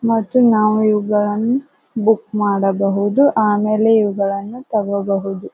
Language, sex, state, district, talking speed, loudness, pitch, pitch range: Kannada, female, Karnataka, Bijapur, 85 wpm, -16 LUFS, 215 Hz, 200-225 Hz